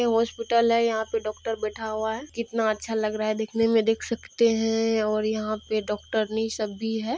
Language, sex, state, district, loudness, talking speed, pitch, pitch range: Hindi, female, Bihar, Purnia, -26 LUFS, 215 wpm, 225 Hz, 215-230 Hz